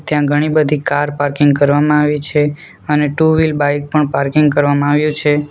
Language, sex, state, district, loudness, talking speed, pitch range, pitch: Gujarati, male, Gujarat, Valsad, -14 LUFS, 185 wpm, 145-150 Hz, 150 Hz